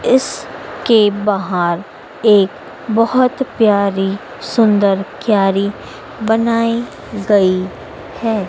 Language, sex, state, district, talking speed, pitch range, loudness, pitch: Hindi, female, Madhya Pradesh, Dhar, 80 wpm, 195-230 Hz, -15 LUFS, 210 Hz